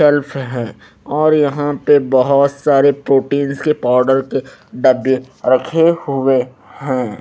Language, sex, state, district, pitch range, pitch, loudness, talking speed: Hindi, male, Haryana, Rohtak, 130-145 Hz, 135 Hz, -15 LUFS, 125 wpm